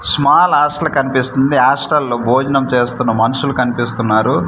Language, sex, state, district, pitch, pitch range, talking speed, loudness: Telugu, male, Andhra Pradesh, Manyam, 130 Hz, 120-140 Hz, 120 wpm, -14 LUFS